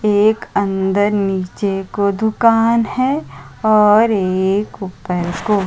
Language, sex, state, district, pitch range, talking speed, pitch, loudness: Hindi, female, Uttar Pradesh, Hamirpur, 195-220 Hz, 105 wpm, 205 Hz, -16 LUFS